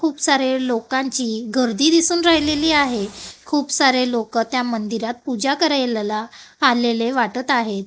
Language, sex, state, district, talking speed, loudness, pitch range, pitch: Marathi, female, Maharashtra, Gondia, 130 wpm, -19 LUFS, 230-285 Hz, 255 Hz